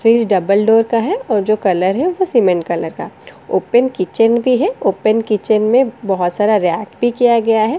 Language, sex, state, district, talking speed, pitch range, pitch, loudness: Hindi, female, Delhi, New Delhi, 210 wpm, 195-235 Hz, 220 Hz, -15 LUFS